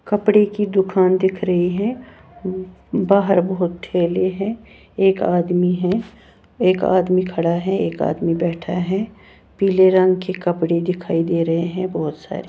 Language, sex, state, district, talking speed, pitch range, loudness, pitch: Hindi, female, Haryana, Jhajjar, 150 wpm, 175-195 Hz, -19 LUFS, 185 Hz